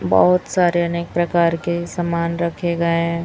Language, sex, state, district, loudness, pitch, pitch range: Hindi, female, Chhattisgarh, Raipur, -19 LUFS, 170 Hz, 170-175 Hz